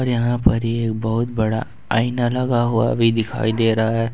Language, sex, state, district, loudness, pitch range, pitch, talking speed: Hindi, male, Jharkhand, Ranchi, -20 LUFS, 110-120 Hz, 115 Hz, 190 wpm